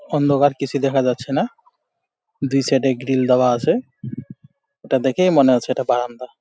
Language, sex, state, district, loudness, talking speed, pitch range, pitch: Bengali, male, West Bengal, Jalpaiguri, -18 LUFS, 160 wpm, 125-145 Hz, 135 Hz